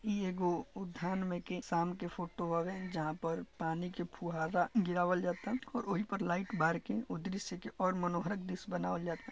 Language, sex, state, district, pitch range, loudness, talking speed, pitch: Bhojpuri, male, Bihar, Gopalganj, 170-195 Hz, -37 LUFS, 195 wpm, 180 Hz